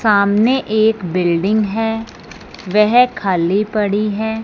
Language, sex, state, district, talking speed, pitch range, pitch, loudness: Hindi, male, Punjab, Fazilka, 110 wpm, 200-220 Hz, 210 Hz, -16 LUFS